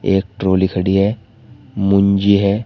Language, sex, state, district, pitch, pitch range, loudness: Hindi, male, Uttar Pradesh, Shamli, 100 Hz, 95-110 Hz, -15 LUFS